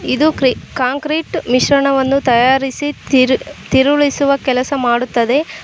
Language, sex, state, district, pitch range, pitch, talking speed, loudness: Kannada, female, Karnataka, Koppal, 255-285 Hz, 265 Hz, 105 wpm, -14 LUFS